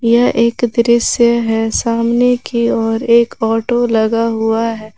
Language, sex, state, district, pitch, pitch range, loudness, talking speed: Hindi, female, Jharkhand, Garhwa, 230 Hz, 225-235 Hz, -14 LUFS, 145 wpm